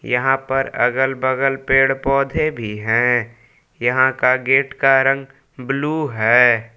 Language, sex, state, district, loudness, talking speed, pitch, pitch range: Hindi, male, Jharkhand, Palamu, -17 LUFS, 135 wpm, 135 Hz, 125-135 Hz